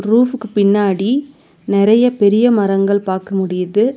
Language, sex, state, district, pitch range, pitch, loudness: Tamil, female, Tamil Nadu, Nilgiris, 195-240 Hz, 205 Hz, -14 LUFS